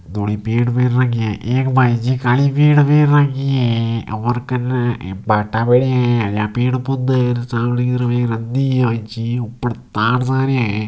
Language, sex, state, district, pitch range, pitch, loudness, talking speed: Marwari, male, Rajasthan, Nagaur, 115-130 Hz, 120 Hz, -17 LUFS, 125 wpm